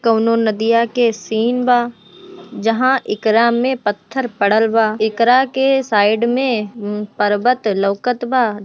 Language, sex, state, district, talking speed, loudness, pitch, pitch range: Bhojpuri, female, Bihar, Gopalganj, 125 wpm, -16 LUFS, 225 Hz, 210-245 Hz